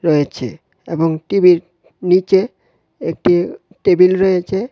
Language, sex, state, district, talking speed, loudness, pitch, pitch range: Bengali, male, Tripura, West Tripura, 100 wpm, -15 LUFS, 180 Hz, 165-190 Hz